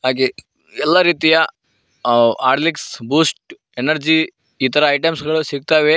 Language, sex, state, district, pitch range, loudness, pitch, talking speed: Kannada, male, Karnataka, Koppal, 130-160 Hz, -16 LUFS, 155 Hz, 90 wpm